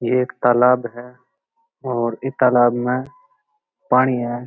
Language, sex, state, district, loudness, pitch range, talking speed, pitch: Marwari, male, Rajasthan, Nagaur, -18 LUFS, 120-135 Hz, 135 wpm, 125 Hz